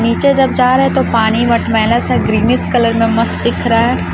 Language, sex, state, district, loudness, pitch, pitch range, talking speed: Hindi, female, Chhattisgarh, Raipur, -12 LUFS, 230 Hz, 230-250 Hz, 230 wpm